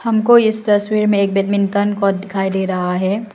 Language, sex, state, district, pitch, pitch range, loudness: Hindi, female, Arunachal Pradesh, Lower Dibang Valley, 200 Hz, 195-215 Hz, -15 LUFS